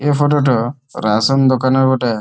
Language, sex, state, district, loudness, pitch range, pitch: Bengali, male, West Bengal, Malda, -15 LUFS, 120-135 Hz, 130 Hz